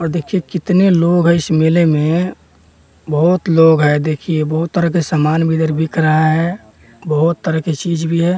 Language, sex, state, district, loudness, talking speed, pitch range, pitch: Hindi, male, Bihar, West Champaran, -14 LUFS, 200 wpm, 155-170 Hz, 160 Hz